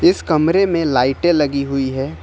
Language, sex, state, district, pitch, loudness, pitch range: Hindi, male, Jharkhand, Ranchi, 150 Hz, -16 LUFS, 135-170 Hz